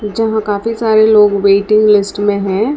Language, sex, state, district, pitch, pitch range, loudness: Hindi, female, Karnataka, Bangalore, 210 Hz, 200-215 Hz, -12 LUFS